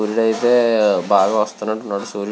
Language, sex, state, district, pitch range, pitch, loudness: Telugu, male, Andhra Pradesh, Visakhapatnam, 105-115 Hz, 110 Hz, -17 LUFS